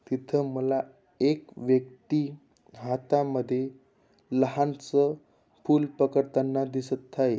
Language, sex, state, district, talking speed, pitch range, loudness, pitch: Marathi, male, Maharashtra, Dhule, 80 wpm, 130-145 Hz, -28 LUFS, 135 Hz